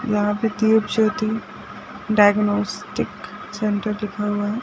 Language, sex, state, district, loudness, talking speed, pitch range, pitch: Hindi, female, Rajasthan, Nagaur, -21 LUFS, 105 wpm, 210-215 Hz, 210 Hz